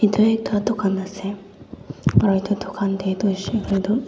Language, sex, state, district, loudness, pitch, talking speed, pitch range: Nagamese, female, Nagaland, Dimapur, -21 LUFS, 200 Hz, 175 wpm, 195-210 Hz